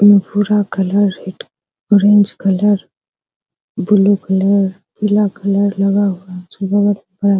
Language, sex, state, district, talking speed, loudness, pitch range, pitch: Hindi, female, Bihar, Araria, 105 wpm, -14 LUFS, 190-205 Hz, 200 Hz